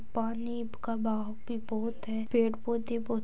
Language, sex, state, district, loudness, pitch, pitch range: Hindi, female, Rajasthan, Churu, -33 LUFS, 230 Hz, 220-235 Hz